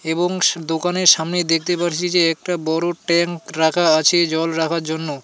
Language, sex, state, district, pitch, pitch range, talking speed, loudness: Bengali, male, West Bengal, Alipurduar, 170 Hz, 160-175 Hz, 160 wpm, -18 LUFS